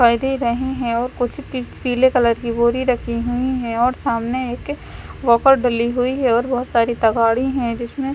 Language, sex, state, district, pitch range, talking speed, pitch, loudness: Hindi, female, Chandigarh, Chandigarh, 235-260 Hz, 185 wpm, 245 Hz, -19 LUFS